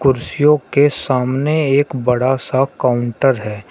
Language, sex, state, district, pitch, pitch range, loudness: Hindi, male, Uttar Pradesh, Shamli, 135 Hz, 125-140 Hz, -16 LUFS